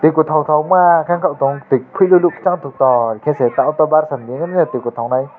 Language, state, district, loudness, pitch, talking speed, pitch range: Kokborok, Tripura, West Tripura, -15 LUFS, 150 Hz, 180 wpm, 130-170 Hz